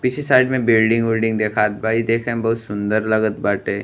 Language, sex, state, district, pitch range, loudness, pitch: Bhojpuri, male, Uttar Pradesh, Gorakhpur, 110-115 Hz, -18 LUFS, 115 Hz